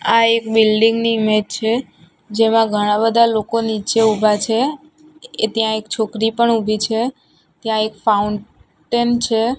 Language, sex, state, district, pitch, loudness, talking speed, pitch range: Gujarati, female, Gujarat, Gandhinagar, 225 Hz, -17 LUFS, 150 wpm, 215-230 Hz